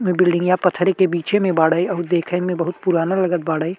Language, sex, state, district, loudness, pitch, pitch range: Bhojpuri, male, Uttar Pradesh, Ghazipur, -18 LUFS, 180 Hz, 170-185 Hz